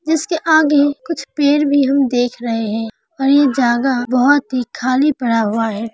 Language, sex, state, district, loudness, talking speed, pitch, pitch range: Hindi, female, Uttar Pradesh, Hamirpur, -15 LUFS, 180 wpm, 270 Hz, 240-290 Hz